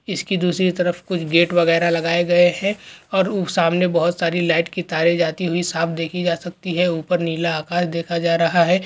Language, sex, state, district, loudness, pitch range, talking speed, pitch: Hindi, male, Bihar, Begusarai, -19 LUFS, 170-180 Hz, 210 wpm, 175 Hz